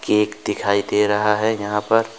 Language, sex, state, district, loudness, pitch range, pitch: Hindi, male, West Bengal, Alipurduar, -19 LUFS, 105-110 Hz, 105 Hz